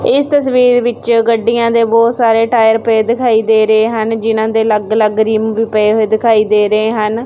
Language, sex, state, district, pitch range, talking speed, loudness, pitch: Punjabi, female, Punjab, Kapurthala, 220-230 Hz, 205 wpm, -12 LUFS, 225 Hz